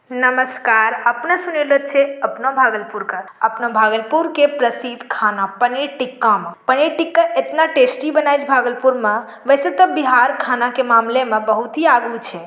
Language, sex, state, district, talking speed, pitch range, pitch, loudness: Angika, female, Bihar, Bhagalpur, 175 wpm, 225-280 Hz, 255 Hz, -16 LUFS